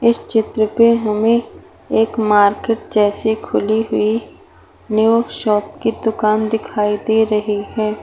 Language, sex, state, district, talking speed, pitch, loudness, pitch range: Hindi, female, Bihar, Gaya, 125 wpm, 220 Hz, -16 LUFS, 210-225 Hz